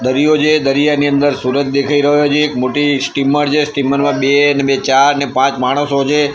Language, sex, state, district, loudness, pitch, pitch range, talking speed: Gujarati, male, Gujarat, Gandhinagar, -13 LUFS, 140 Hz, 135-145 Hz, 205 wpm